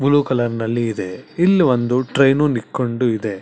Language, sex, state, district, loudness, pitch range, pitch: Kannada, male, Karnataka, Chamarajanagar, -18 LUFS, 115-140 Hz, 125 Hz